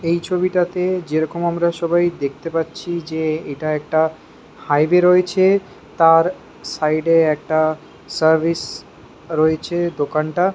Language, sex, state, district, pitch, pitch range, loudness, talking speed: Bengali, male, West Bengal, Kolkata, 165 Hz, 155-175 Hz, -18 LUFS, 110 wpm